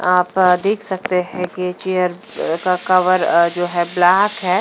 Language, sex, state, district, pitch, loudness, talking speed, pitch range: Hindi, female, Punjab, Fazilka, 180 Hz, -17 LUFS, 170 wpm, 180-185 Hz